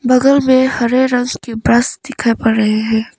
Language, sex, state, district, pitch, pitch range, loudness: Hindi, female, Arunachal Pradesh, Papum Pare, 245 Hz, 225-260 Hz, -14 LUFS